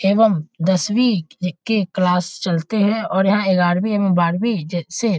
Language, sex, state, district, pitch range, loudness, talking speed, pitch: Hindi, male, Bihar, Muzaffarpur, 175-210 Hz, -18 LUFS, 160 wpm, 190 Hz